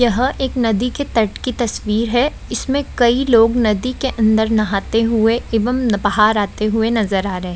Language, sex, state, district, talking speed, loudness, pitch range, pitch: Hindi, female, Bihar, Muzaffarpur, 180 wpm, -17 LUFS, 215-245 Hz, 225 Hz